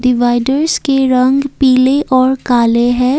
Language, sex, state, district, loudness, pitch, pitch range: Hindi, female, Assam, Kamrup Metropolitan, -12 LUFS, 255 Hz, 245-270 Hz